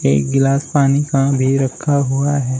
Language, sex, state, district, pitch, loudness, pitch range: Hindi, male, Uttar Pradesh, Shamli, 135 Hz, -16 LUFS, 130-140 Hz